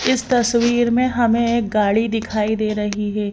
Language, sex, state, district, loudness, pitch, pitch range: Hindi, female, Madhya Pradesh, Bhopal, -18 LUFS, 225 Hz, 210-240 Hz